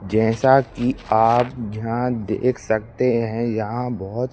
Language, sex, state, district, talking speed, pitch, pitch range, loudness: Hindi, male, Madhya Pradesh, Bhopal, 140 wpm, 115 Hz, 110-125 Hz, -21 LUFS